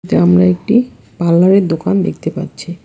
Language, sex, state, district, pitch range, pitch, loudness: Bengali, female, West Bengal, Alipurduar, 160-195 Hz, 175 Hz, -13 LUFS